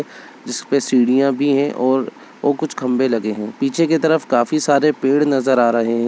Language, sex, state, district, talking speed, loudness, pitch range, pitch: Hindi, male, Bihar, Begusarai, 205 wpm, -17 LUFS, 125-145 Hz, 135 Hz